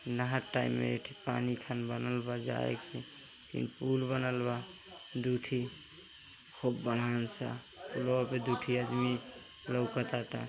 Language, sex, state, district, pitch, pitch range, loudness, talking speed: Hindi, male, Uttar Pradesh, Gorakhpur, 125 Hz, 120-125 Hz, -36 LUFS, 130 wpm